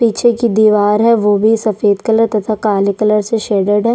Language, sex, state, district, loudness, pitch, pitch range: Hindi, female, Chhattisgarh, Sukma, -13 LUFS, 215 Hz, 205-225 Hz